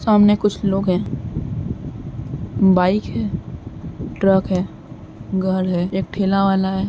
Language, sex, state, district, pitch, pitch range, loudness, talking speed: Hindi, male, Uttar Pradesh, Jalaun, 190 Hz, 190-195 Hz, -19 LUFS, 120 wpm